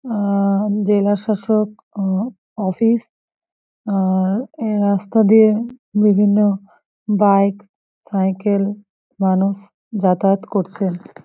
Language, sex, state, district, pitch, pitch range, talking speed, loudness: Bengali, female, West Bengal, Paschim Medinipur, 205 Hz, 195-215 Hz, 80 wpm, -18 LUFS